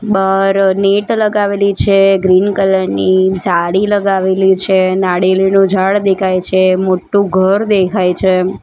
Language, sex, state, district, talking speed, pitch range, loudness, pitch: Gujarati, female, Gujarat, Valsad, 125 wpm, 185-195 Hz, -12 LUFS, 190 Hz